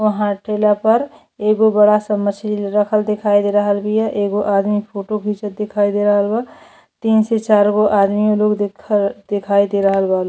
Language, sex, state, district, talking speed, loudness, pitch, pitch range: Bhojpuri, female, Uttar Pradesh, Deoria, 190 wpm, -16 LUFS, 210 Hz, 205-215 Hz